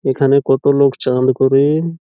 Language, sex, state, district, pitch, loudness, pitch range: Bengali, male, West Bengal, Malda, 135 Hz, -14 LUFS, 135-140 Hz